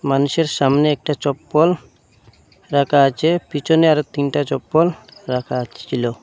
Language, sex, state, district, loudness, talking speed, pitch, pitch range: Bengali, male, Assam, Hailakandi, -18 LUFS, 115 wpm, 140 Hz, 125-155 Hz